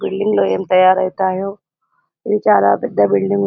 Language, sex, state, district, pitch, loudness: Telugu, female, Telangana, Karimnagar, 185 Hz, -15 LUFS